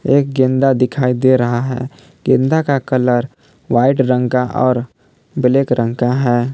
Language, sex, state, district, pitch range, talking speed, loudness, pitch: Hindi, male, Jharkhand, Palamu, 125-135 Hz, 155 wpm, -15 LUFS, 130 Hz